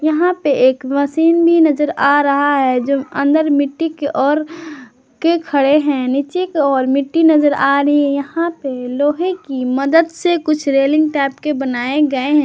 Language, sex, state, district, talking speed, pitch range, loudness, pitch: Hindi, male, Jharkhand, Garhwa, 185 wpm, 275-315 Hz, -15 LUFS, 290 Hz